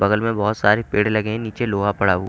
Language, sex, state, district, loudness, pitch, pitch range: Hindi, male, Haryana, Charkhi Dadri, -20 LUFS, 105 Hz, 100-110 Hz